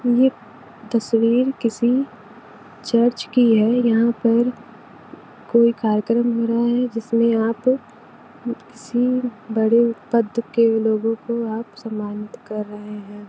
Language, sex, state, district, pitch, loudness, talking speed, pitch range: Hindi, female, Uttar Pradesh, Varanasi, 230 Hz, -20 LUFS, 115 wpm, 225-240 Hz